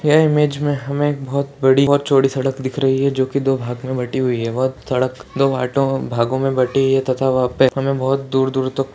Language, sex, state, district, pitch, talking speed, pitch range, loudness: Hindi, male, Uttarakhand, Tehri Garhwal, 135 Hz, 240 wpm, 130-140 Hz, -18 LUFS